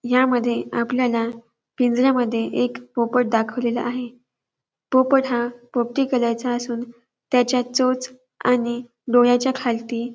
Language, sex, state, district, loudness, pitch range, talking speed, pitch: Marathi, female, Maharashtra, Dhule, -21 LUFS, 235-250 Hz, 110 wpm, 245 Hz